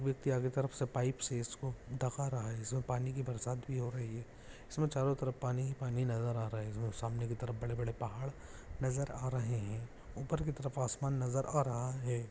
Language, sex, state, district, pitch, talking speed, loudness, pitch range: Hindi, male, Jharkhand, Jamtara, 125 Hz, 240 wpm, -38 LUFS, 120-135 Hz